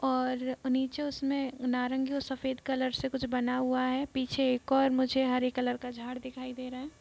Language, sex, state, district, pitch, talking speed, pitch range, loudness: Hindi, female, Bihar, East Champaran, 255 Hz, 205 wpm, 255-265 Hz, -31 LUFS